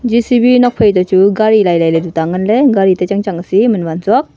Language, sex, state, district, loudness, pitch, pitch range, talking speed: Wancho, female, Arunachal Pradesh, Longding, -11 LUFS, 195 Hz, 175-230 Hz, 245 wpm